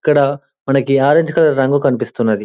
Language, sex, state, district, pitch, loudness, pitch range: Telugu, male, Telangana, Karimnagar, 135 Hz, -14 LUFS, 130-145 Hz